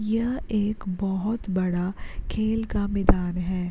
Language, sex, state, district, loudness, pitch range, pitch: Hindi, female, Uttarakhand, Uttarkashi, -26 LUFS, 185-220 Hz, 200 Hz